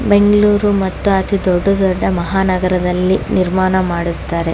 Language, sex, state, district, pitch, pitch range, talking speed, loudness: Kannada, female, Karnataka, Dakshina Kannada, 185 Hz, 180-195 Hz, 105 wpm, -15 LUFS